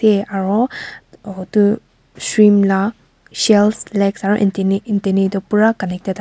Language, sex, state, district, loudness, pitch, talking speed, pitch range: Nagamese, female, Nagaland, Kohima, -16 LUFS, 200 Hz, 135 wpm, 195-210 Hz